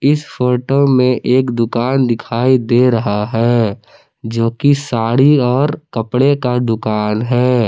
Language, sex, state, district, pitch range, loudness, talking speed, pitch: Hindi, male, Jharkhand, Palamu, 115-130 Hz, -14 LUFS, 125 wpm, 125 Hz